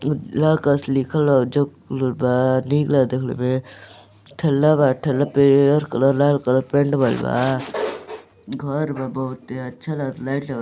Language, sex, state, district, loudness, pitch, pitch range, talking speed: Hindi, male, Uttar Pradesh, Deoria, -20 LUFS, 135 Hz, 130-145 Hz, 135 wpm